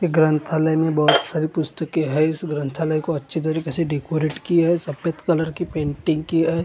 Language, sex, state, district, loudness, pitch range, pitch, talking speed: Hindi, male, Maharashtra, Gondia, -21 LUFS, 155-165 Hz, 160 Hz, 190 wpm